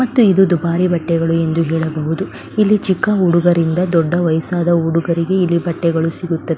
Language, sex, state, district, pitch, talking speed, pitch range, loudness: Kannada, female, Karnataka, Belgaum, 170 Hz, 135 wpm, 165-180 Hz, -15 LUFS